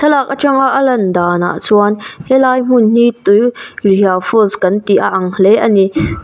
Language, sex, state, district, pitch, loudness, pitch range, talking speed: Mizo, female, Mizoram, Aizawl, 210 Hz, -11 LUFS, 190-255 Hz, 175 wpm